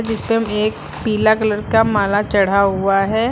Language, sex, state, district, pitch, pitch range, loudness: Hindi, female, Uttar Pradesh, Lucknow, 215 Hz, 200-225 Hz, -16 LUFS